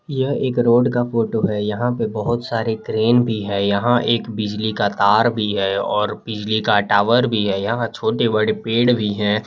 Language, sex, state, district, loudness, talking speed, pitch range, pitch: Hindi, male, Jharkhand, Palamu, -19 LUFS, 195 wpm, 105-120 Hz, 110 Hz